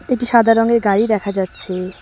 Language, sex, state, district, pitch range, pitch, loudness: Bengali, female, West Bengal, Cooch Behar, 190-235 Hz, 215 Hz, -16 LUFS